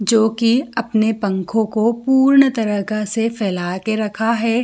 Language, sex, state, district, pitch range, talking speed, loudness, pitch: Hindi, female, Jharkhand, Sahebganj, 215-230 Hz, 140 wpm, -17 LUFS, 225 Hz